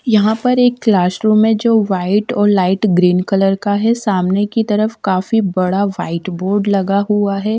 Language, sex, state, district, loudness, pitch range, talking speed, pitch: Hindi, female, Punjab, Kapurthala, -15 LUFS, 190-215 Hz, 190 wpm, 205 Hz